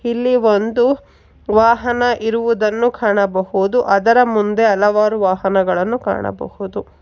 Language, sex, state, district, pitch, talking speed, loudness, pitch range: Kannada, female, Karnataka, Bangalore, 220 Hz, 85 wpm, -15 LUFS, 200-240 Hz